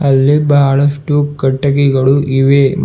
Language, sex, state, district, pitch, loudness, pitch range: Kannada, male, Karnataka, Bidar, 140 Hz, -11 LUFS, 135-145 Hz